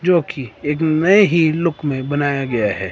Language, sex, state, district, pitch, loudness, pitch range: Hindi, male, Himachal Pradesh, Shimla, 150 Hz, -17 LUFS, 135-165 Hz